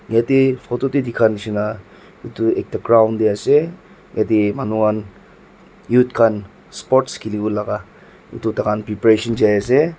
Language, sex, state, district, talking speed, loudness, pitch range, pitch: Nagamese, male, Nagaland, Dimapur, 140 wpm, -18 LUFS, 105-125 Hz, 110 Hz